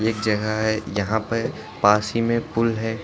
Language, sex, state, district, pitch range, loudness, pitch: Hindi, male, Uttar Pradesh, Lucknow, 105-115 Hz, -22 LUFS, 110 Hz